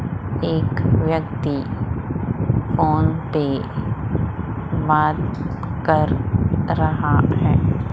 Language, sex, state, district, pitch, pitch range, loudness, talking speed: Hindi, female, Madhya Pradesh, Umaria, 145 Hz, 120-155 Hz, -20 LUFS, 60 wpm